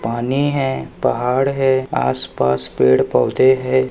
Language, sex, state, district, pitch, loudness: Hindi, male, Maharashtra, Pune, 125 Hz, -17 LUFS